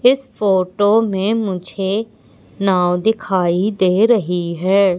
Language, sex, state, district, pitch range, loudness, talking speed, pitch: Hindi, female, Madhya Pradesh, Umaria, 185-215 Hz, -17 LUFS, 110 wpm, 195 Hz